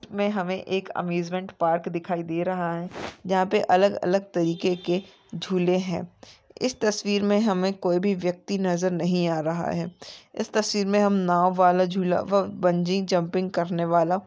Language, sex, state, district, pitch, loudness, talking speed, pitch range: Hindi, female, Maharashtra, Nagpur, 185 Hz, -25 LUFS, 160 wpm, 175-195 Hz